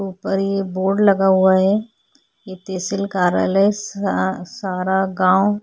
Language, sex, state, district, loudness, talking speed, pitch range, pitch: Hindi, female, Chhattisgarh, Korba, -18 LUFS, 140 wpm, 185-200 Hz, 195 Hz